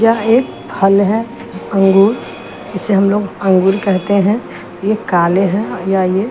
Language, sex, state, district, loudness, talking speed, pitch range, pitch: Hindi, female, Bihar, Patna, -14 LUFS, 150 wpm, 190-215 Hz, 195 Hz